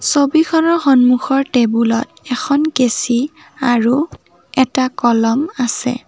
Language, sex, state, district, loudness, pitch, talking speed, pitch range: Assamese, female, Assam, Kamrup Metropolitan, -15 LUFS, 260 Hz, 100 wpm, 245-290 Hz